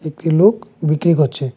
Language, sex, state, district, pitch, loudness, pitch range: Bengali, male, Tripura, West Tripura, 160 Hz, -16 LUFS, 150-175 Hz